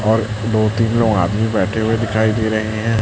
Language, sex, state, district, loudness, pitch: Hindi, male, Chhattisgarh, Raipur, -17 LUFS, 110 Hz